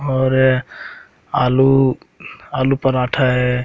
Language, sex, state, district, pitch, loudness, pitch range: Hindi, male, Madhya Pradesh, Katni, 130 Hz, -16 LUFS, 125-135 Hz